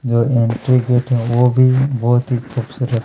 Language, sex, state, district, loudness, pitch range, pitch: Hindi, male, Chhattisgarh, Kabirdham, -16 LUFS, 120-125 Hz, 125 Hz